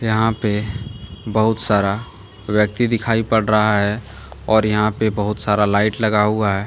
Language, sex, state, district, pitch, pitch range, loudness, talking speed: Hindi, male, Jharkhand, Deoghar, 105 Hz, 105-110 Hz, -18 LUFS, 160 wpm